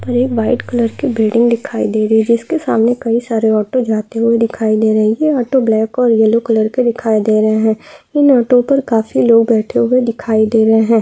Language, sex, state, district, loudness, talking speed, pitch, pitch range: Hindi, female, Bihar, Gaya, -13 LUFS, 230 wpm, 230 Hz, 220-245 Hz